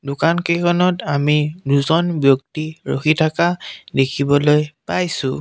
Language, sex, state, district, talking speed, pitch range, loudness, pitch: Assamese, male, Assam, Sonitpur, 100 wpm, 140-170 Hz, -18 LUFS, 150 Hz